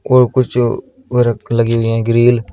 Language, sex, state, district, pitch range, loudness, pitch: Hindi, male, Uttar Pradesh, Shamli, 115-125 Hz, -14 LUFS, 120 Hz